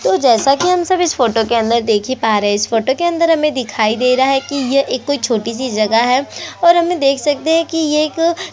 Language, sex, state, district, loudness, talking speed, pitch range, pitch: Hindi, female, Chhattisgarh, Korba, -14 LUFS, 290 wpm, 230-320 Hz, 265 Hz